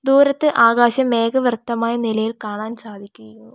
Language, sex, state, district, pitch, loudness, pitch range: Malayalam, female, Kerala, Kollam, 230 Hz, -17 LUFS, 215-250 Hz